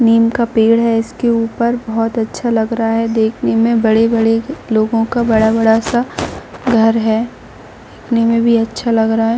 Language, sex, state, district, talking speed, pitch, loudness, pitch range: Hindi, female, Jharkhand, Jamtara, 200 wpm, 230 Hz, -14 LUFS, 225-235 Hz